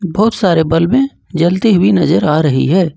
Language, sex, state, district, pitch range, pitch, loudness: Hindi, male, Jharkhand, Ranchi, 165-200 Hz, 180 Hz, -12 LUFS